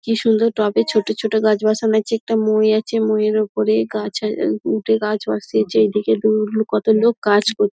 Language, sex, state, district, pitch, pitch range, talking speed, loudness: Bengali, female, West Bengal, Dakshin Dinajpur, 215 Hz, 205-220 Hz, 195 wpm, -18 LUFS